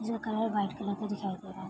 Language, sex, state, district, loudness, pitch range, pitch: Hindi, female, Bihar, Araria, -33 LUFS, 195-220 Hz, 205 Hz